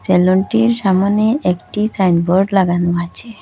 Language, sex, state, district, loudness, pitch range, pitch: Bengali, female, Assam, Hailakandi, -15 LUFS, 180-215 Hz, 190 Hz